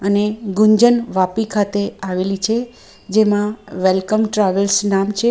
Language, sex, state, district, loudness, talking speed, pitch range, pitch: Gujarati, female, Gujarat, Valsad, -17 LUFS, 125 wpm, 195-220 Hz, 205 Hz